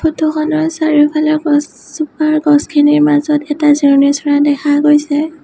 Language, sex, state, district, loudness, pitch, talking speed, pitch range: Assamese, female, Assam, Sonitpur, -12 LUFS, 295 Hz, 120 wpm, 290-310 Hz